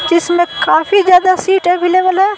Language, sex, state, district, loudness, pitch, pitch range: Hindi, female, Bihar, Patna, -11 LUFS, 365 Hz, 345-380 Hz